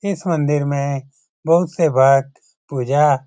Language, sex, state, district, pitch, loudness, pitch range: Hindi, male, Bihar, Lakhisarai, 145 Hz, -18 LUFS, 135-165 Hz